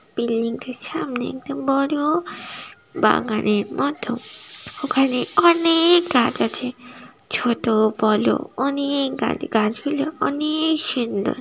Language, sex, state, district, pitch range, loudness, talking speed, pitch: Bengali, female, West Bengal, Kolkata, 230-305 Hz, -21 LUFS, 100 wpm, 260 Hz